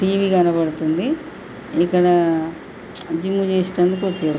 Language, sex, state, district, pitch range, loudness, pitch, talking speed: Telugu, female, Telangana, Nalgonda, 165-190 Hz, -19 LUFS, 180 Hz, 80 wpm